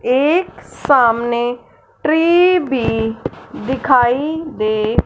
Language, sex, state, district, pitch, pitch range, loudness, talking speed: Hindi, male, Punjab, Fazilka, 260 Hz, 235-315 Hz, -15 LUFS, 60 wpm